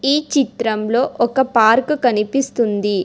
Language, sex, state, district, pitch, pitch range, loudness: Telugu, female, Telangana, Hyderabad, 240 Hz, 220-270 Hz, -17 LUFS